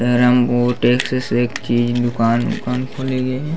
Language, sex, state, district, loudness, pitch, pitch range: Chhattisgarhi, male, Chhattisgarh, Bastar, -17 LUFS, 125 Hz, 120-130 Hz